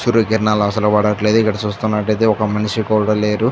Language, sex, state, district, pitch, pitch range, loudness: Telugu, male, Andhra Pradesh, Chittoor, 105 Hz, 105-110 Hz, -16 LUFS